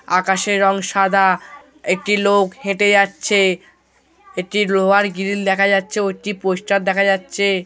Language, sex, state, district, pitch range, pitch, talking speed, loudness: Bengali, male, West Bengal, North 24 Parganas, 190-205 Hz, 195 Hz, 135 wpm, -17 LUFS